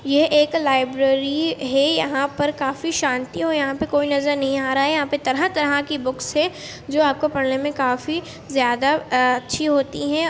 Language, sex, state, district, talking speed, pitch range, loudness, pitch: Hindi, female, Chhattisgarh, Rajnandgaon, 200 wpm, 270-300 Hz, -20 LUFS, 285 Hz